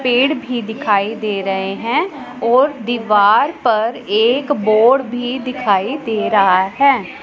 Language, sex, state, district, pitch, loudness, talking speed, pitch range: Hindi, female, Punjab, Pathankot, 235 Hz, -16 LUFS, 135 wpm, 210-260 Hz